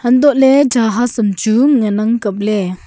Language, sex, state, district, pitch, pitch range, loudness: Wancho, female, Arunachal Pradesh, Longding, 230 Hz, 210-260 Hz, -13 LUFS